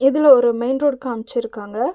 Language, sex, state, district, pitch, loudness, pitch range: Tamil, female, Tamil Nadu, Nilgiris, 250 Hz, -17 LUFS, 235-270 Hz